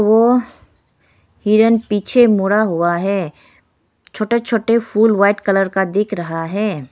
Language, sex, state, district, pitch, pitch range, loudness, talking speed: Hindi, female, Arunachal Pradesh, Lower Dibang Valley, 210 Hz, 195-225 Hz, -16 LUFS, 130 wpm